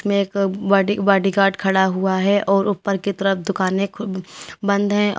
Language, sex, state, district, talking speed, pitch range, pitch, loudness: Hindi, female, Uttar Pradesh, Lalitpur, 185 wpm, 190-200 Hz, 195 Hz, -19 LUFS